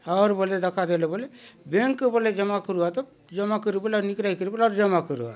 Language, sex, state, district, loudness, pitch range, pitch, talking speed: Halbi, male, Chhattisgarh, Bastar, -25 LUFS, 185-220 Hz, 200 Hz, 190 wpm